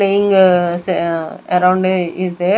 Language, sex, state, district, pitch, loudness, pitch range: English, female, Punjab, Kapurthala, 185 Hz, -15 LUFS, 175-185 Hz